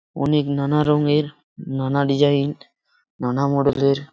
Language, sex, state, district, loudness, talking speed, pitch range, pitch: Bengali, male, West Bengal, Purulia, -20 LUFS, 145 wpm, 140-150 Hz, 140 Hz